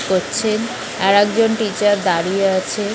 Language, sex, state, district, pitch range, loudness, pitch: Bengali, female, West Bengal, North 24 Parganas, 190-215 Hz, -17 LUFS, 205 Hz